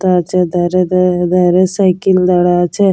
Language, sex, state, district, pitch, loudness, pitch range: Bengali, female, West Bengal, Jalpaiguri, 180 Hz, -12 LUFS, 180-185 Hz